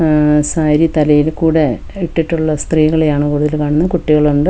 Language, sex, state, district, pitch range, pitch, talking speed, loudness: Malayalam, female, Kerala, Wayanad, 150-160 Hz, 155 Hz, 120 wpm, -13 LUFS